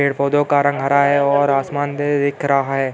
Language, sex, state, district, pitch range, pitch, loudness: Hindi, male, Uttar Pradesh, Hamirpur, 140-145 Hz, 140 Hz, -17 LUFS